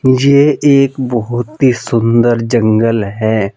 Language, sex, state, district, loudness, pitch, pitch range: Hindi, male, Uttar Pradesh, Saharanpur, -12 LUFS, 120 Hz, 115-130 Hz